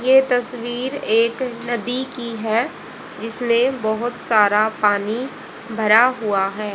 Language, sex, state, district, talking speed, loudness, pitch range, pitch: Hindi, female, Haryana, Rohtak, 115 wpm, -19 LUFS, 220-245 Hz, 235 Hz